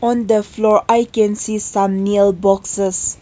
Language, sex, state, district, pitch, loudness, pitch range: English, female, Nagaland, Kohima, 210 Hz, -16 LUFS, 200-220 Hz